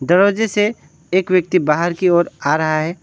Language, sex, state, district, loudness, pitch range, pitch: Hindi, male, West Bengal, Alipurduar, -16 LUFS, 160-190 Hz, 175 Hz